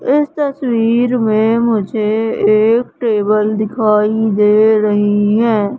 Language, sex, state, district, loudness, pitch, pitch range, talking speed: Hindi, female, Madhya Pradesh, Katni, -13 LUFS, 220 Hz, 210-235 Hz, 105 wpm